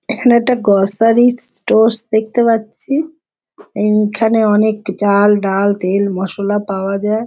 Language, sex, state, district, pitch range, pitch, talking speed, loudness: Bengali, female, West Bengal, Jhargram, 200-230 Hz, 215 Hz, 115 wpm, -14 LUFS